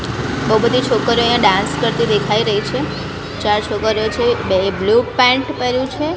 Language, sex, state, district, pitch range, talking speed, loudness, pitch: Gujarati, female, Gujarat, Gandhinagar, 210-265 Hz, 165 wpm, -16 LUFS, 245 Hz